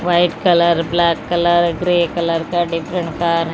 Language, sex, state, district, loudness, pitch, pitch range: Hindi, female, Odisha, Malkangiri, -16 LUFS, 170 Hz, 170-175 Hz